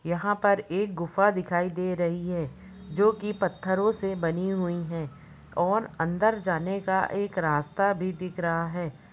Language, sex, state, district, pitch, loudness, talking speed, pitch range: Hindi, female, Uttar Pradesh, Jalaun, 185 Hz, -27 LUFS, 165 wpm, 170-195 Hz